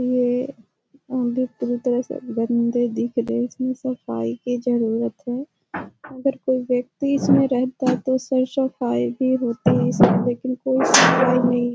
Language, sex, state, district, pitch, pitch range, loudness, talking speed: Hindi, female, Bihar, Jahanabad, 250 Hz, 240-260 Hz, -21 LUFS, 140 wpm